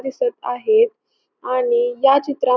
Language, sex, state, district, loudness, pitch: Marathi, female, Maharashtra, Pune, -18 LUFS, 275 Hz